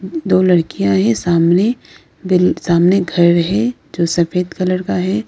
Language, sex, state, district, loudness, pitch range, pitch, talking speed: Hindi, female, Arunachal Pradesh, Lower Dibang Valley, -15 LUFS, 170-190 Hz, 180 Hz, 150 wpm